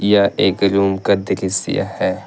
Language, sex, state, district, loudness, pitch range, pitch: Hindi, male, Jharkhand, Deoghar, -17 LUFS, 95-100 Hz, 100 Hz